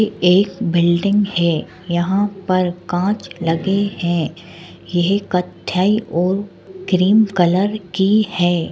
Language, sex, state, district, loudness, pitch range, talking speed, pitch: Hindi, female, Uttar Pradesh, Etah, -17 LUFS, 175-200 Hz, 105 wpm, 185 Hz